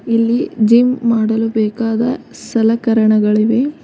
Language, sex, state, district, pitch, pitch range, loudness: Kannada, female, Karnataka, Koppal, 230 Hz, 220-240 Hz, -14 LUFS